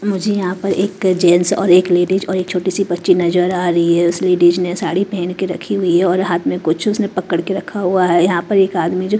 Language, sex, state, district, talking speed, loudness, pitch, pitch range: Hindi, female, Chhattisgarh, Raipur, 265 wpm, -15 LUFS, 180 Hz, 175-195 Hz